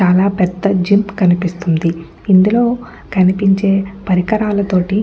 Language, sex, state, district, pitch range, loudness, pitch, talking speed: Telugu, female, Andhra Pradesh, Guntur, 180-200 Hz, -14 LUFS, 195 Hz, 95 wpm